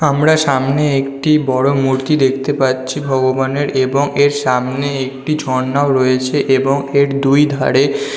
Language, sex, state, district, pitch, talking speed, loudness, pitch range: Bengali, male, West Bengal, North 24 Parganas, 135 Hz, 130 wpm, -14 LUFS, 130-145 Hz